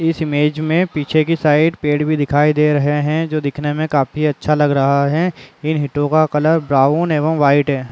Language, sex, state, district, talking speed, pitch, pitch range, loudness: Chhattisgarhi, male, Chhattisgarh, Raigarh, 210 wpm, 150 Hz, 145-155 Hz, -16 LUFS